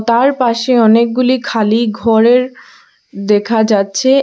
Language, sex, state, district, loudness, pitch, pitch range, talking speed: Bengali, female, Assam, Hailakandi, -12 LUFS, 235 Hz, 220-255 Hz, 100 wpm